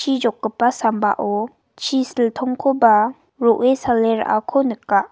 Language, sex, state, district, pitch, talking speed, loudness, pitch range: Garo, female, Meghalaya, West Garo Hills, 235 Hz, 105 wpm, -18 LUFS, 220-260 Hz